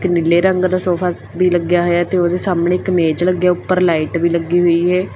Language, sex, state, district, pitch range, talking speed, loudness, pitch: Punjabi, female, Punjab, Fazilka, 170-180 Hz, 220 wpm, -15 LUFS, 175 Hz